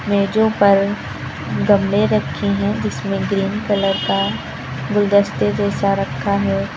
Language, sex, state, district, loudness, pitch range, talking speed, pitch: Hindi, female, Uttar Pradesh, Lucknow, -18 LUFS, 195-205 Hz, 115 wpm, 200 Hz